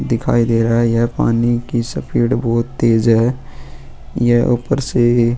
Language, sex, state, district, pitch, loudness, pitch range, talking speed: Hindi, male, Goa, North and South Goa, 120 Hz, -16 LUFS, 115-120 Hz, 155 wpm